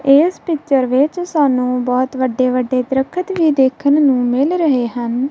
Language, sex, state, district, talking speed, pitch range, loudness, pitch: Punjabi, female, Punjab, Kapurthala, 160 wpm, 255-300 Hz, -15 LUFS, 265 Hz